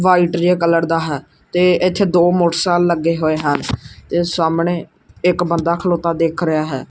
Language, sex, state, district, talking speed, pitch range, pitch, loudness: Punjabi, male, Punjab, Kapurthala, 165 wpm, 165-175 Hz, 170 Hz, -16 LUFS